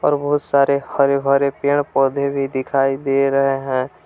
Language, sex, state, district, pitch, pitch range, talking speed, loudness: Hindi, male, Jharkhand, Palamu, 140 Hz, 135-140 Hz, 160 wpm, -18 LUFS